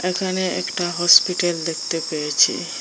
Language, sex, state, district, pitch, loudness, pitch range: Bengali, female, Assam, Hailakandi, 175 Hz, -19 LUFS, 165-185 Hz